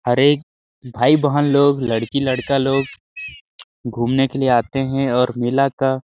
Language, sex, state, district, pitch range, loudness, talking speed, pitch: Hindi, male, Chhattisgarh, Sarguja, 125-140 Hz, -18 LUFS, 150 wpm, 135 Hz